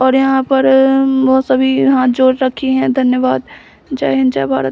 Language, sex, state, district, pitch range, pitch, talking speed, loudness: Hindi, female, Bihar, Samastipur, 250-265 Hz, 260 Hz, 180 wpm, -13 LUFS